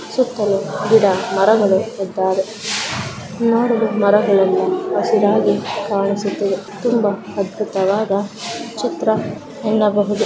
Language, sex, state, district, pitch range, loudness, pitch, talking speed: Kannada, female, Karnataka, Mysore, 195-225 Hz, -17 LUFS, 205 Hz, 70 wpm